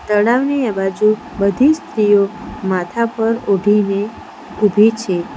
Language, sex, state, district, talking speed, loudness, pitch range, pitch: Gujarati, female, Gujarat, Valsad, 110 wpm, -16 LUFS, 200-225 Hz, 210 Hz